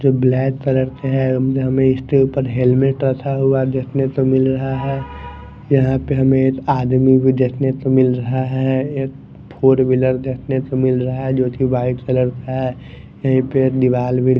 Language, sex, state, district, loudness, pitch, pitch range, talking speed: Hindi, male, Bihar, Katihar, -17 LUFS, 130 Hz, 130-135 Hz, 190 wpm